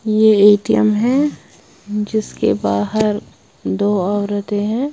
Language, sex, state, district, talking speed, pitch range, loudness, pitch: Hindi, female, Bihar, West Champaran, 95 wpm, 205-220 Hz, -16 LUFS, 210 Hz